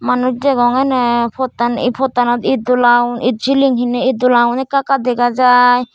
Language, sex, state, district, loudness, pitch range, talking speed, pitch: Chakma, female, Tripura, Dhalai, -14 LUFS, 240-260 Hz, 170 wpm, 250 Hz